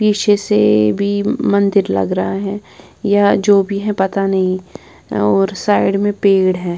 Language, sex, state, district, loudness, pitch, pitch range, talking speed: Hindi, female, Bihar, Patna, -15 LUFS, 195 Hz, 185-205 Hz, 160 wpm